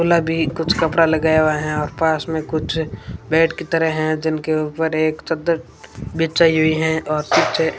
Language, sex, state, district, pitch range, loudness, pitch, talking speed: Hindi, female, Rajasthan, Bikaner, 155-165 Hz, -18 LUFS, 160 Hz, 185 wpm